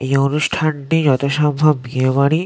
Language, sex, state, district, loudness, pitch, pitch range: Bengali, male, West Bengal, North 24 Parganas, -16 LUFS, 145 Hz, 135-155 Hz